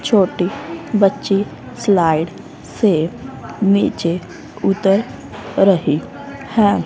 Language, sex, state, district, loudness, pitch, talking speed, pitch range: Hindi, female, Haryana, Rohtak, -17 LUFS, 195 Hz, 70 wpm, 180-205 Hz